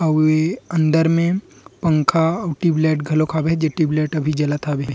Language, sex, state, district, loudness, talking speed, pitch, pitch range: Chhattisgarhi, male, Chhattisgarh, Rajnandgaon, -19 LUFS, 195 wpm, 155 Hz, 155-165 Hz